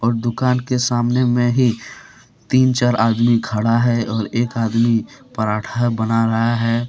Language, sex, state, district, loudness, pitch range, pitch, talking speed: Hindi, male, Jharkhand, Deoghar, -18 LUFS, 115-120 Hz, 115 Hz, 150 wpm